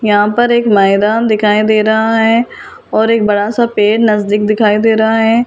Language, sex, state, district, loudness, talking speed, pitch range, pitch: Hindi, female, Delhi, New Delhi, -11 LUFS, 210 wpm, 210-225 Hz, 220 Hz